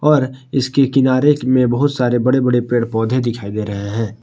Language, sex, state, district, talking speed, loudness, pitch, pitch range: Hindi, male, Jharkhand, Palamu, 200 wpm, -16 LUFS, 125 Hz, 115-130 Hz